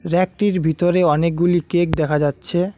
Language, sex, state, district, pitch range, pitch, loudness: Bengali, male, West Bengal, Alipurduar, 160-180 Hz, 175 Hz, -18 LUFS